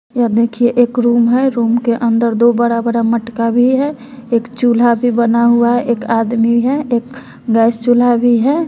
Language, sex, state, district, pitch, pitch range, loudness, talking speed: Hindi, female, Bihar, West Champaran, 235 Hz, 235-245 Hz, -13 LUFS, 185 wpm